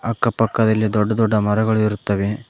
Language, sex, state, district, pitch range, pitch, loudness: Kannada, male, Karnataka, Koppal, 105-115 Hz, 110 Hz, -18 LUFS